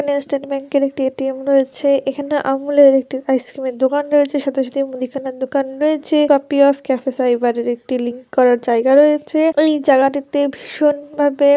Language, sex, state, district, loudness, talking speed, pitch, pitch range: Bengali, female, West Bengal, Jalpaiguri, -16 LUFS, 140 wpm, 275 Hz, 265-285 Hz